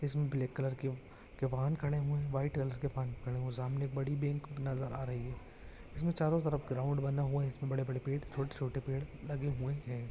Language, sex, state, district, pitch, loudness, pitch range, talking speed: Hindi, male, Jharkhand, Jamtara, 135 Hz, -37 LUFS, 130-145 Hz, 245 wpm